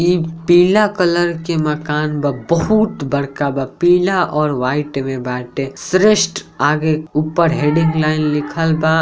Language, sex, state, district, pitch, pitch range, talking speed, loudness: Bhojpuri, male, Bihar, Saran, 155 Hz, 145-175 Hz, 145 wpm, -16 LUFS